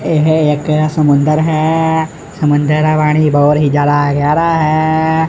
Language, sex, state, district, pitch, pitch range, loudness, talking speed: Punjabi, male, Punjab, Kapurthala, 155 Hz, 150-160 Hz, -12 LUFS, 135 wpm